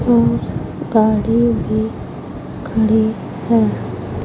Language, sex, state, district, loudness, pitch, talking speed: Hindi, female, Chhattisgarh, Raipur, -17 LUFS, 205 Hz, 70 wpm